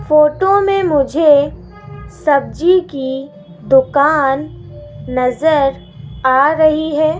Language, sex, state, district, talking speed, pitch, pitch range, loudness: Hindi, female, Rajasthan, Jaipur, 85 wpm, 285 Hz, 265-310 Hz, -14 LUFS